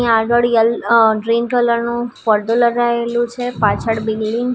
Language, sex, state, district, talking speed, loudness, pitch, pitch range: Gujarati, female, Gujarat, Gandhinagar, 170 wpm, -16 LUFS, 235 Hz, 225-240 Hz